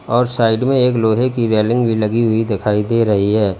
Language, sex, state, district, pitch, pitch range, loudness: Hindi, male, Uttar Pradesh, Lalitpur, 115 Hz, 105-120 Hz, -15 LUFS